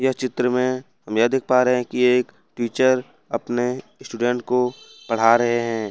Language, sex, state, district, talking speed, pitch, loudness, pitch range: Hindi, male, Jharkhand, Ranchi, 175 wpm, 125 Hz, -21 LUFS, 120-125 Hz